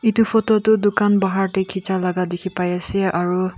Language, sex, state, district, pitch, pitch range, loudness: Nagamese, female, Nagaland, Kohima, 190 Hz, 180-205 Hz, -19 LUFS